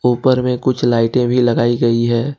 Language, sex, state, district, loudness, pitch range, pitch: Hindi, male, Jharkhand, Ranchi, -15 LUFS, 120-125 Hz, 120 Hz